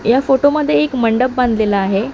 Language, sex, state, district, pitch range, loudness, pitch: Marathi, male, Maharashtra, Mumbai Suburban, 205-265 Hz, -14 LUFS, 240 Hz